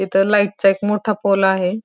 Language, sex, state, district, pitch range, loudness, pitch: Marathi, female, Maharashtra, Pune, 195-210 Hz, -17 LUFS, 195 Hz